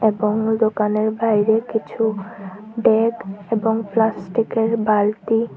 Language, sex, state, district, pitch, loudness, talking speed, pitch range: Bengali, female, Tripura, Unakoti, 220 Hz, -19 LUFS, 110 wpm, 210-225 Hz